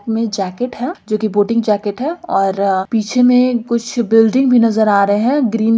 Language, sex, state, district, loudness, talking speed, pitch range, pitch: Hindi, female, Bihar, Gopalganj, -15 LUFS, 205 wpm, 210-250 Hz, 225 Hz